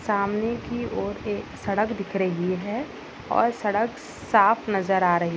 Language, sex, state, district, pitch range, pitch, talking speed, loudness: Hindi, female, Maharashtra, Nagpur, 190-225 Hz, 205 Hz, 155 wpm, -25 LUFS